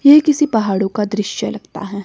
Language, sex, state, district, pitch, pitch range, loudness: Hindi, female, Himachal Pradesh, Shimla, 210 Hz, 200-285 Hz, -16 LUFS